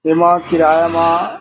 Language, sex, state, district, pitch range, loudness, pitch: Chhattisgarhi, male, Chhattisgarh, Korba, 165-170 Hz, -13 LUFS, 165 Hz